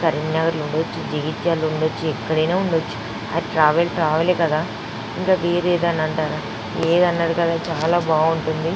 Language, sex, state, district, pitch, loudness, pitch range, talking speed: Telugu, female, Andhra Pradesh, Anantapur, 160 Hz, -20 LUFS, 155-170 Hz, 75 wpm